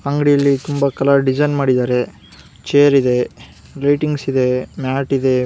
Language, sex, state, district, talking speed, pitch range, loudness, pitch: Kannada, female, Karnataka, Gulbarga, 145 wpm, 130-145 Hz, -16 LUFS, 140 Hz